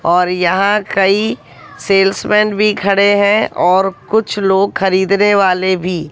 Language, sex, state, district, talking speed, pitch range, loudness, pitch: Hindi, female, Haryana, Jhajjar, 130 wpm, 185-205 Hz, -13 LUFS, 195 Hz